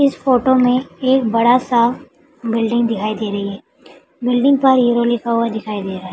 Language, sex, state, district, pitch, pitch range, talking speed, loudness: Hindi, female, Bihar, Araria, 240 Hz, 225-260 Hz, 195 wpm, -16 LUFS